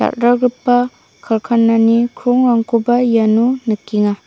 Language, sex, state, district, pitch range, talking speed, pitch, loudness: Garo, female, Meghalaya, South Garo Hills, 225-245 Hz, 70 wpm, 235 Hz, -14 LUFS